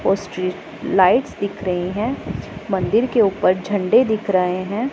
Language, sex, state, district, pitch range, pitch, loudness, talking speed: Hindi, female, Punjab, Pathankot, 185-220 Hz, 200 Hz, -19 LUFS, 145 wpm